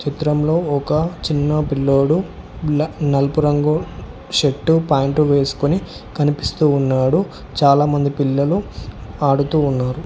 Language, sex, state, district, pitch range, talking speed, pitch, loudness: Telugu, male, Telangana, Hyderabad, 140-155 Hz, 95 wpm, 145 Hz, -17 LUFS